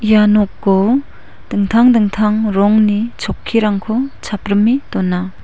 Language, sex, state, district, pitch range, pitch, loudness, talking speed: Garo, female, Meghalaya, West Garo Hills, 200-225 Hz, 210 Hz, -14 LUFS, 90 wpm